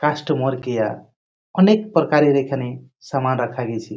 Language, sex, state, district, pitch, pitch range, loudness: Bengali, female, West Bengal, Jhargram, 135 Hz, 125-150 Hz, -19 LUFS